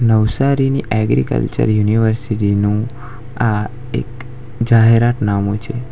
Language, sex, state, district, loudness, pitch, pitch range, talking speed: Gujarati, male, Gujarat, Valsad, -16 LUFS, 115 Hz, 110-125 Hz, 90 wpm